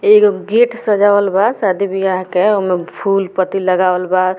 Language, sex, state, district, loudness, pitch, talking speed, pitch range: Bhojpuri, female, Bihar, Muzaffarpur, -14 LUFS, 195 Hz, 180 wpm, 185-205 Hz